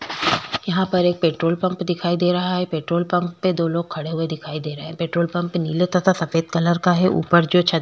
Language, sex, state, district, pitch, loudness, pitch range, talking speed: Hindi, female, Chhattisgarh, Korba, 175 Hz, -20 LUFS, 165-180 Hz, 220 wpm